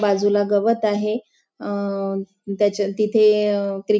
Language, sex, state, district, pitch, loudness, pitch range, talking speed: Marathi, female, Maharashtra, Nagpur, 205 Hz, -20 LUFS, 200-210 Hz, 120 wpm